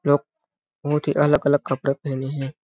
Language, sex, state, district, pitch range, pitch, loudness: Hindi, male, Chhattisgarh, Balrampur, 135-150 Hz, 145 Hz, -22 LUFS